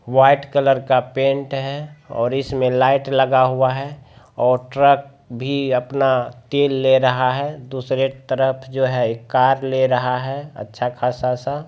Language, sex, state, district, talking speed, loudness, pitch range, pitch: Hindi, male, Bihar, Begusarai, 160 wpm, -18 LUFS, 125-140 Hz, 130 Hz